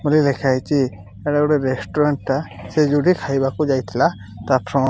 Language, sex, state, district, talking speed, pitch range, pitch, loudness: Odia, male, Odisha, Malkangiri, 160 wpm, 130-150 Hz, 135 Hz, -19 LUFS